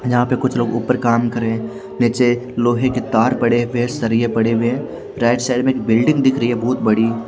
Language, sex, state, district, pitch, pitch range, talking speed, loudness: Hindi, male, Haryana, Jhajjar, 120 Hz, 115-125 Hz, 240 wpm, -17 LUFS